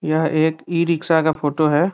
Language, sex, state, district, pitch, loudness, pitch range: Hindi, male, Bihar, Muzaffarpur, 160 Hz, -19 LUFS, 155-165 Hz